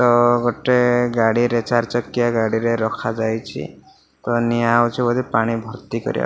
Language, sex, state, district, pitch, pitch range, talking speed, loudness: Odia, male, Odisha, Malkangiri, 120 Hz, 115-120 Hz, 145 wpm, -19 LUFS